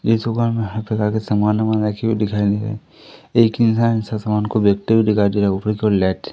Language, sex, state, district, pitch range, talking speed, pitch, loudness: Hindi, male, Madhya Pradesh, Katni, 105-110 Hz, 275 wpm, 110 Hz, -18 LUFS